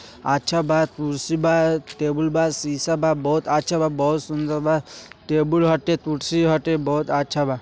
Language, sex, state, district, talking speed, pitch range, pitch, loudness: Bhojpuri, male, Bihar, East Champaran, 165 wpm, 150-160 Hz, 155 Hz, -21 LUFS